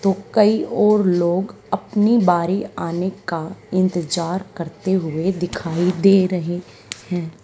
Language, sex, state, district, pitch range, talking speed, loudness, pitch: Hindi, female, Haryana, Charkhi Dadri, 170-195 Hz, 120 wpm, -19 LUFS, 180 Hz